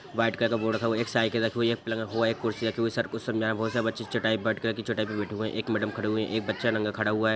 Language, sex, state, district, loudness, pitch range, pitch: Hindi, male, Bihar, Sitamarhi, -28 LUFS, 110-115 Hz, 115 Hz